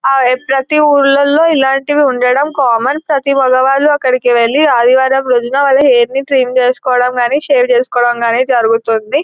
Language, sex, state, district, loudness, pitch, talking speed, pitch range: Telugu, female, Telangana, Nalgonda, -11 LUFS, 265 Hz, 135 wpm, 250-285 Hz